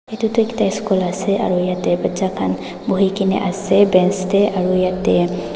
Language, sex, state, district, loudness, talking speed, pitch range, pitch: Nagamese, female, Nagaland, Dimapur, -17 LUFS, 175 wpm, 180-200 Hz, 190 Hz